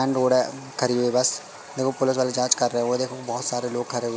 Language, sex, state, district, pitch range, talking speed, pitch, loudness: Hindi, male, Madhya Pradesh, Katni, 120-130 Hz, 285 wpm, 125 Hz, -24 LUFS